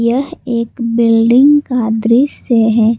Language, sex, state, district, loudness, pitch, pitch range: Hindi, female, Jharkhand, Garhwa, -12 LUFS, 235 Hz, 230-255 Hz